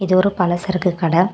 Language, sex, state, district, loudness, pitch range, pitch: Tamil, female, Tamil Nadu, Kanyakumari, -18 LUFS, 175-190 Hz, 180 Hz